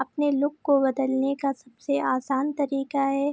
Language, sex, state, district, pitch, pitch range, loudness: Hindi, female, Bihar, Araria, 275 Hz, 265-285 Hz, -25 LUFS